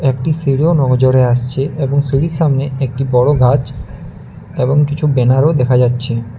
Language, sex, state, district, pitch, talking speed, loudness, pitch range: Bengali, male, West Bengal, Alipurduar, 135 Hz, 140 wpm, -14 LUFS, 125-145 Hz